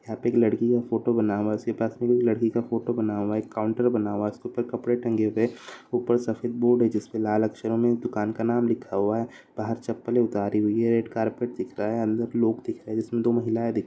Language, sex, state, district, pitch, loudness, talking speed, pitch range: Hindi, male, Uttar Pradesh, Deoria, 115 Hz, -26 LUFS, 265 wpm, 110-120 Hz